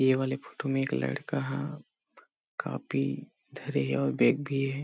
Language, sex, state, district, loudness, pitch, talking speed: Chhattisgarhi, male, Chhattisgarh, Rajnandgaon, -30 LUFS, 130 Hz, 185 wpm